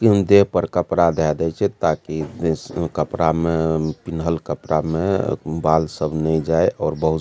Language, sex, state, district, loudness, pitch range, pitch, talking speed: Maithili, male, Bihar, Supaul, -20 LUFS, 80-85 Hz, 80 Hz, 165 wpm